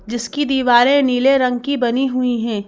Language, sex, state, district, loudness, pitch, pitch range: Hindi, female, Madhya Pradesh, Bhopal, -16 LUFS, 250 Hz, 240-270 Hz